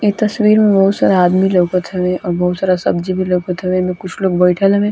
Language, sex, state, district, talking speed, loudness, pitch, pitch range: Bhojpuri, female, Bihar, Gopalganj, 230 wpm, -14 LUFS, 185 Hz, 180-195 Hz